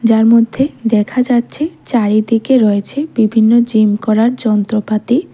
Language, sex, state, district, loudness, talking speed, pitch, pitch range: Bengali, female, Tripura, West Tripura, -13 LUFS, 115 wpm, 225 Hz, 215-245 Hz